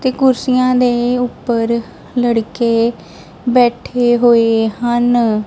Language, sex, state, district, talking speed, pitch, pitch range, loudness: Punjabi, female, Punjab, Kapurthala, 90 wpm, 240 Hz, 230-245 Hz, -14 LUFS